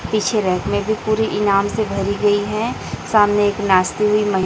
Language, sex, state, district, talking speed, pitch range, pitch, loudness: Hindi, female, Chhattisgarh, Raipur, 200 wpm, 200-215 Hz, 205 Hz, -18 LUFS